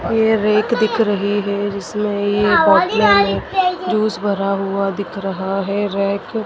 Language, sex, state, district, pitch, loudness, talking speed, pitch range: Hindi, female, Madhya Pradesh, Dhar, 205 Hz, -17 LUFS, 160 wpm, 200-215 Hz